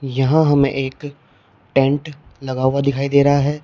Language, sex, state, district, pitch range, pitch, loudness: Hindi, male, Uttar Pradesh, Shamli, 135-145 Hz, 140 Hz, -17 LUFS